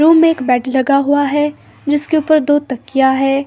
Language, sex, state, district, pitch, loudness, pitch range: Hindi, female, Himachal Pradesh, Shimla, 285 Hz, -14 LUFS, 270-300 Hz